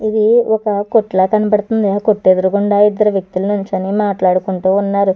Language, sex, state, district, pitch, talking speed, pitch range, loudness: Telugu, female, Andhra Pradesh, Chittoor, 205 Hz, 130 wpm, 190-215 Hz, -14 LUFS